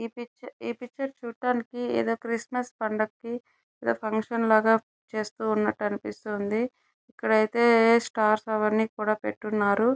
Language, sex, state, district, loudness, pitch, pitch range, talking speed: Telugu, female, Andhra Pradesh, Chittoor, -27 LUFS, 225 Hz, 215-240 Hz, 115 wpm